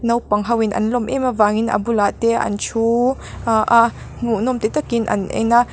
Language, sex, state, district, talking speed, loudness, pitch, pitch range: Mizo, female, Mizoram, Aizawl, 210 wpm, -18 LUFS, 230 Hz, 220-240 Hz